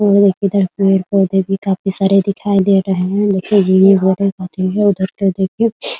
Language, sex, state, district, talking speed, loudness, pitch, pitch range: Hindi, female, Bihar, Muzaffarpur, 150 wpm, -14 LUFS, 195 Hz, 190-200 Hz